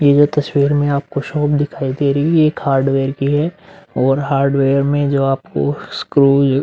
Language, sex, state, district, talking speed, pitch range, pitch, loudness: Hindi, male, Uttar Pradesh, Budaun, 190 wpm, 135-145 Hz, 140 Hz, -16 LUFS